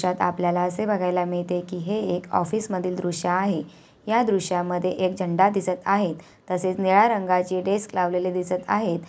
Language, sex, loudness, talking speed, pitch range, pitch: Awadhi, female, -24 LUFS, 165 wpm, 180-195 Hz, 185 Hz